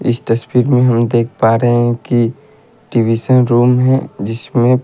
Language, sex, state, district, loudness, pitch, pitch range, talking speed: Hindi, male, Haryana, Rohtak, -13 LUFS, 120 Hz, 115-125 Hz, 160 wpm